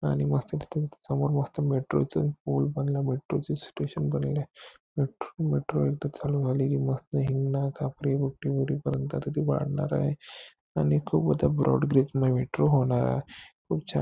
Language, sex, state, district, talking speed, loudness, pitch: Marathi, male, Maharashtra, Nagpur, 135 wpm, -28 LUFS, 130 Hz